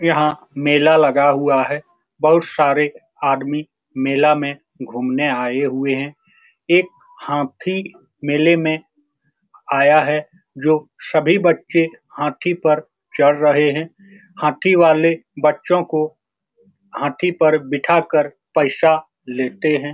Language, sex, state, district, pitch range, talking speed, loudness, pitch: Hindi, male, Bihar, Saran, 145-165 Hz, 115 wpm, -17 LUFS, 150 Hz